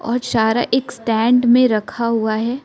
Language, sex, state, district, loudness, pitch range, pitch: Hindi, female, Arunachal Pradesh, Lower Dibang Valley, -17 LUFS, 225-245 Hz, 235 Hz